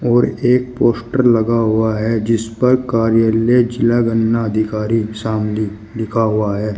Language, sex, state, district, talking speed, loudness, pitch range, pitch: Hindi, male, Uttar Pradesh, Shamli, 135 wpm, -16 LUFS, 110-120 Hz, 115 Hz